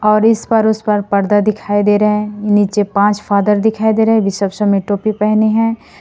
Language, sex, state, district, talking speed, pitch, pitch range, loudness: Hindi, female, Assam, Sonitpur, 200 wpm, 210 Hz, 205-220 Hz, -14 LUFS